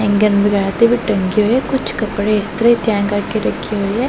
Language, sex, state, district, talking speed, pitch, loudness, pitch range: Punjabi, female, Punjab, Pathankot, 160 wpm, 210 Hz, -16 LUFS, 205-230 Hz